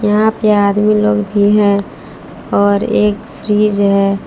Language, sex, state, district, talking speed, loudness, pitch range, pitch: Hindi, female, Jharkhand, Palamu, 140 wpm, -13 LUFS, 200-210 Hz, 210 Hz